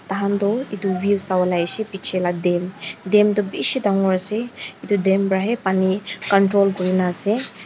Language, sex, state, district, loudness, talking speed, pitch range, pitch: Nagamese, female, Nagaland, Dimapur, -20 LUFS, 165 wpm, 185-205 Hz, 195 Hz